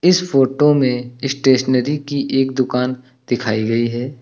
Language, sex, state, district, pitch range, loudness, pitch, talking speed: Hindi, male, Uttar Pradesh, Lucknow, 125-140 Hz, -17 LUFS, 130 Hz, 140 wpm